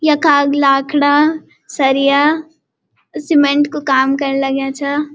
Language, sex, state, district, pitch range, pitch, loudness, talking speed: Garhwali, female, Uttarakhand, Uttarkashi, 275-295 Hz, 285 Hz, -14 LUFS, 115 wpm